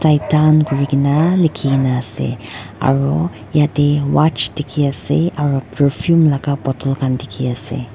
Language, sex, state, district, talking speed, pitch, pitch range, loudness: Nagamese, female, Nagaland, Dimapur, 120 wpm, 140 Hz, 135-150 Hz, -16 LUFS